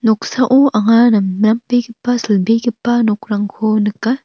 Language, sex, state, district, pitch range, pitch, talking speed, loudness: Garo, female, Meghalaya, North Garo Hills, 210-240 Hz, 225 Hz, 85 wpm, -14 LUFS